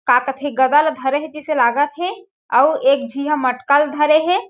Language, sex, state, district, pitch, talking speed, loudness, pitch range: Chhattisgarhi, female, Chhattisgarh, Jashpur, 290 Hz, 225 wpm, -17 LUFS, 270-310 Hz